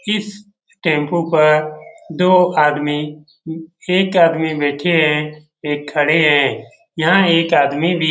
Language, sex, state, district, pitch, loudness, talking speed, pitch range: Hindi, male, Bihar, Jamui, 160 Hz, -15 LUFS, 120 wpm, 150-180 Hz